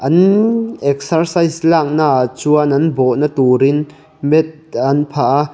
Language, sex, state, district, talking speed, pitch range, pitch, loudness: Mizo, male, Mizoram, Aizawl, 120 wpm, 140-160 Hz, 150 Hz, -14 LUFS